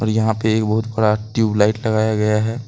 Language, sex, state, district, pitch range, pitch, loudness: Hindi, male, Jharkhand, Deoghar, 105-110 Hz, 110 Hz, -18 LUFS